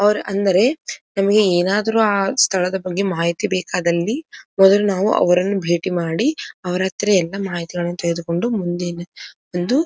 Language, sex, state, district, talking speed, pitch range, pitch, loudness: Kannada, female, Karnataka, Dharwad, 135 wpm, 175-205 Hz, 190 Hz, -19 LUFS